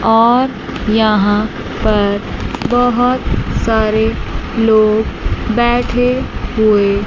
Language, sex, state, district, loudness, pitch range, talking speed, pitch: Hindi, female, Chandigarh, Chandigarh, -14 LUFS, 215-245 Hz, 70 wpm, 220 Hz